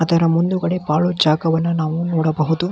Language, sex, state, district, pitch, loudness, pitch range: Kannada, male, Karnataka, Belgaum, 165 Hz, -18 LUFS, 160-175 Hz